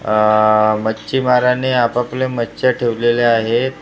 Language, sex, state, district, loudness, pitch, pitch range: Marathi, male, Maharashtra, Gondia, -15 LUFS, 120 Hz, 110-125 Hz